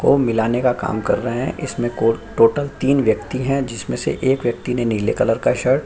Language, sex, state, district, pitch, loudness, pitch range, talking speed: Hindi, male, Bihar, Lakhisarai, 120 Hz, -19 LUFS, 115-135 Hz, 235 wpm